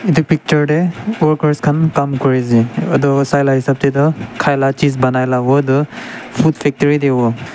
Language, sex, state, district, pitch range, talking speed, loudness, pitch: Nagamese, male, Nagaland, Dimapur, 135-155 Hz, 165 wpm, -14 LUFS, 140 Hz